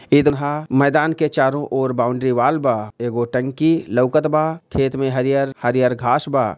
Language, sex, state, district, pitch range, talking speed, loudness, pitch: Bhojpuri, male, Bihar, Gopalganj, 125-150 Hz, 180 wpm, -18 LUFS, 135 Hz